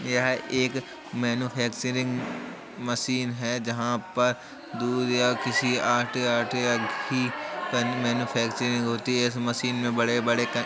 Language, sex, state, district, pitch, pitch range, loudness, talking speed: Hindi, female, Uttar Pradesh, Jalaun, 120 Hz, 120-125 Hz, -26 LUFS, 120 wpm